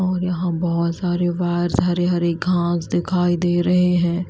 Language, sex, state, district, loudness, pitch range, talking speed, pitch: Hindi, female, Himachal Pradesh, Shimla, -20 LUFS, 175-180 Hz, 155 wpm, 175 Hz